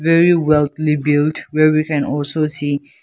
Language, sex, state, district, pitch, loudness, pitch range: English, male, Nagaland, Kohima, 150 Hz, -16 LUFS, 145-155 Hz